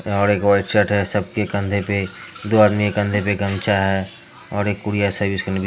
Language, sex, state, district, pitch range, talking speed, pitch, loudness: Hindi, male, Uttar Pradesh, Hamirpur, 100-105 Hz, 235 wpm, 100 Hz, -19 LUFS